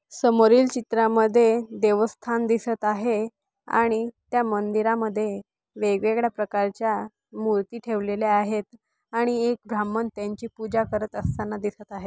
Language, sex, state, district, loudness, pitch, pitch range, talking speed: Marathi, female, Maharashtra, Aurangabad, -24 LUFS, 220 Hz, 210-230 Hz, 110 wpm